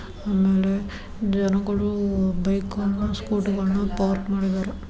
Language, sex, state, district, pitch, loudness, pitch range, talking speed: Kannada, female, Karnataka, Dharwad, 195 Hz, -24 LUFS, 195-205 Hz, 100 wpm